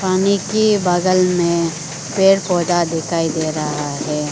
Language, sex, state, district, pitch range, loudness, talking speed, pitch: Hindi, female, Arunachal Pradesh, Lower Dibang Valley, 160-185 Hz, -17 LUFS, 140 wpm, 170 Hz